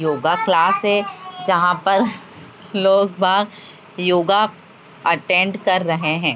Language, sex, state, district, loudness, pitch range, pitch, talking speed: Hindi, female, Bihar, Jamui, -18 LUFS, 175-205 Hz, 185 Hz, 130 wpm